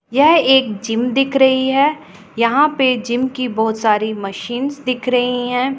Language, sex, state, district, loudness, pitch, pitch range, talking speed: Hindi, female, Punjab, Pathankot, -16 LUFS, 250 Hz, 230-270 Hz, 165 wpm